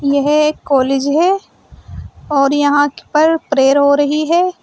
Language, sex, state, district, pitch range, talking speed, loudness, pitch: Hindi, female, Uttar Pradesh, Shamli, 280-310 Hz, 140 wpm, -14 LUFS, 290 Hz